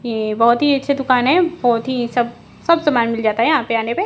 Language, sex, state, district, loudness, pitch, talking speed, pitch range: Hindi, female, Bihar, Kaimur, -17 LUFS, 240 Hz, 265 wpm, 230-280 Hz